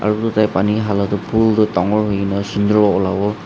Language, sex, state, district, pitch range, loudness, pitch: Nagamese, male, Nagaland, Dimapur, 100-105 Hz, -16 LUFS, 105 Hz